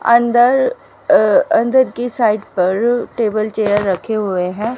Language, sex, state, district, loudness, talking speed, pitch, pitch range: Hindi, female, Haryana, Rohtak, -15 LUFS, 140 wpm, 225 Hz, 210-245 Hz